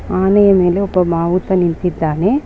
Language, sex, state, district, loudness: Kannada, male, Karnataka, Bangalore, -14 LUFS